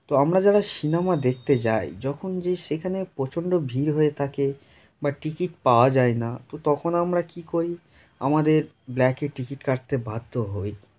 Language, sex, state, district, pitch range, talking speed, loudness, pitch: Bengali, male, West Bengal, North 24 Parganas, 130-170 Hz, 165 wpm, -24 LUFS, 145 Hz